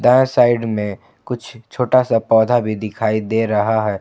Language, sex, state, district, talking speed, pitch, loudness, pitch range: Hindi, male, Jharkhand, Ranchi, 180 wpm, 115 Hz, -17 LUFS, 110-120 Hz